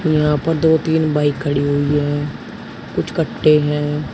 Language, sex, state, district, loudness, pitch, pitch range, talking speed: Hindi, male, Uttar Pradesh, Shamli, -17 LUFS, 150 Hz, 145-155 Hz, 160 wpm